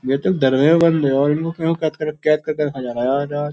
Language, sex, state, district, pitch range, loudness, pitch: Hindi, male, Uttar Pradesh, Jyotiba Phule Nagar, 135-155 Hz, -18 LUFS, 145 Hz